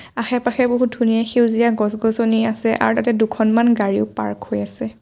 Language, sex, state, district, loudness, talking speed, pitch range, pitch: Assamese, female, Assam, Kamrup Metropolitan, -18 LUFS, 155 wpm, 210-235 Hz, 225 Hz